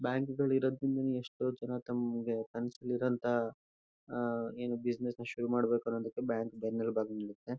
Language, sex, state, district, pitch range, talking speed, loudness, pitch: Kannada, male, Karnataka, Shimoga, 115-125 Hz, 140 wpm, -36 LUFS, 120 Hz